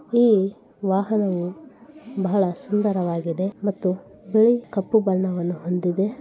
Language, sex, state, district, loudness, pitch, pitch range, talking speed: Kannada, female, Karnataka, Bellary, -22 LUFS, 195 Hz, 185-220 Hz, 85 wpm